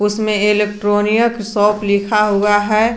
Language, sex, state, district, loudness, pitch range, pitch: Hindi, female, Jharkhand, Garhwa, -15 LUFS, 205-215 Hz, 210 Hz